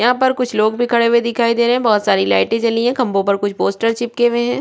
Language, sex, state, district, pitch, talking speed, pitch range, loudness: Hindi, female, Chhattisgarh, Kabirdham, 235 Hz, 285 wpm, 215-240 Hz, -16 LUFS